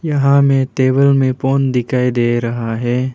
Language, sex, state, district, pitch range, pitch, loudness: Hindi, male, Arunachal Pradesh, Papum Pare, 120-135 Hz, 130 Hz, -15 LUFS